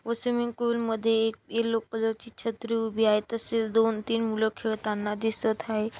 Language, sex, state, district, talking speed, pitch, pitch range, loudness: Marathi, female, Maharashtra, Dhule, 180 wpm, 225 Hz, 220-230 Hz, -28 LUFS